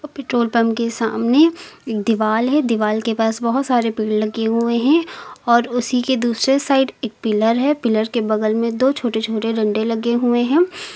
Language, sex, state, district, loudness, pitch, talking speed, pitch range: Hindi, female, Uttar Pradesh, Lucknow, -18 LUFS, 235 Hz, 190 wpm, 225-265 Hz